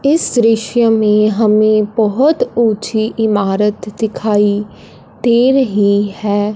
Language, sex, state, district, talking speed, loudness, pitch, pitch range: Hindi, female, Punjab, Fazilka, 100 wpm, -13 LUFS, 215 Hz, 205-230 Hz